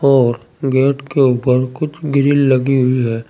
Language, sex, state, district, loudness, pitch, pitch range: Hindi, male, Uttar Pradesh, Saharanpur, -15 LUFS, 135 Hz, 125-140 Hz